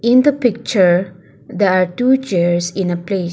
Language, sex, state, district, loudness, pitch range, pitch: English, female, Nagaland, Dimapur, -15 LUFS, 175-235 Hz, 185 Hz